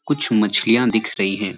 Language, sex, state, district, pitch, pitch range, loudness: Hindi, male, Uttarakhand, Uttarkashi, 110 Hz, 105-115 Hz, -17 LUFS